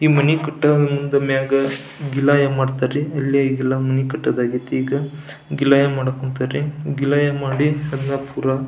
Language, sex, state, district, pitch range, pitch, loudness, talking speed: Kannada, male, Karnataka, Belgaum, 135-145 Hz, 140 Hz, -19 LUFS, 150 wpm